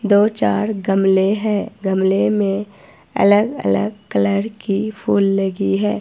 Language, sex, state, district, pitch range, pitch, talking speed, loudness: Hindi, female, Himachal Pradesh, Shimla, 190-210 Hz, 195 Hz, 130 wpm, -18 LUFS